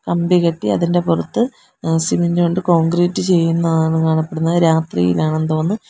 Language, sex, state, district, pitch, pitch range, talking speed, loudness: Malayalam, female, Kerala, Kollam, 165 Hz, 160-175 Hz, 120 wpm, -16 LUFS